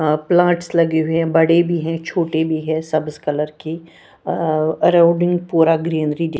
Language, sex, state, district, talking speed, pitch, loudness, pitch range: Hindi, female, Bihar, Patna, 185 wpm, 165 Hz, -17 LUFS, 155-170 Hz